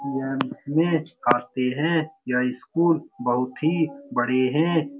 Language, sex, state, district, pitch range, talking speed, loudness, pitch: Hindi, male, Bihar, Saran, 125-160 Hz, 110 wpm, -24 LUFS, 140 Hz